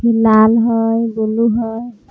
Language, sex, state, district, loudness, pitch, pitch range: Magahi, female, Jharkhand, Palamu, -14 LUFS, 225 Hz, 225-230 Hz